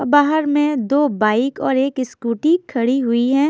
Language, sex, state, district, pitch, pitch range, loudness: Hindi, female, Himachal Pradesh, Shimla, 270 Hz, 245-290 Hz, -17 LUFS